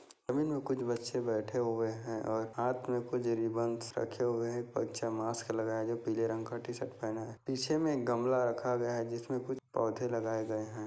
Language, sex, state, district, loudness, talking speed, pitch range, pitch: Hindi, male, Bihar, Jahanabad, -35 LUFS, 205 wpm, 115-125 Hz, 115 Hz